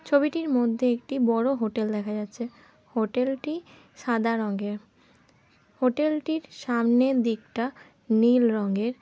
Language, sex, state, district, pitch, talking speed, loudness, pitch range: Bengali, female, West Bengal, North 24 Parganas, 240 Hz, 120 wpm, -26 LUFS, 225-265 Hz